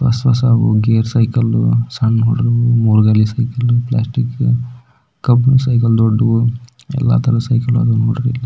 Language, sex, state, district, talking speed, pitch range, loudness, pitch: Kannada, male, Karnataka, Belgaum, 115 wpm, 115-125 Hz, -14 LUFS, 120 Hz